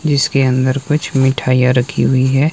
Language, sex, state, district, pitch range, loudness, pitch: Hindi, male, Himachal Pradesh, Shimla, 130-145 Hz, -14 LUFS, 135 Hz